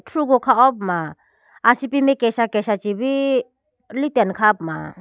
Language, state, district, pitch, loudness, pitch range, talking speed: Idu Mishmi, Arunachal Pradesh, Lower Dibang Valley, 235 Hz, -19 LUFS, 205-265 Hz, 155 wpm